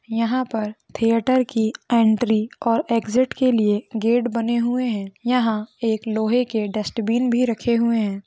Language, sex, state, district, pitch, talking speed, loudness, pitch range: Hindi, female, Maharashtra, Nagpur, 230 Hz, 160 wpm, -21 LUFS, 220-245 Hz